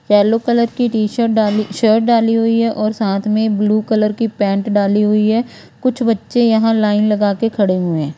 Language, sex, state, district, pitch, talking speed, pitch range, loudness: Hindi, female, Punjab, Fazilka, 215 Hz, 190 wpm, 205-230 Hz, -15 LUFS